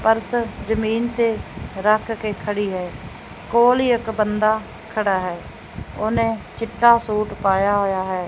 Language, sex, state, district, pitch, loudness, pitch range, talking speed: Punjabi, male, Punjab, Fazilka, 215 Hz, -20 LUFS, 195-225 Hz, 135 wpm